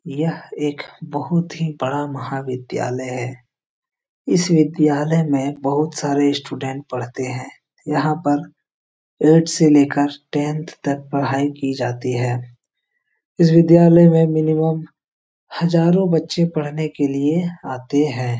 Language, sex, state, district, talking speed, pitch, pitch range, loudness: Hindi, male, Bihar, Jahanabad, 125 wpm, 150 Hz, 135-160 Hz, -18 LUFS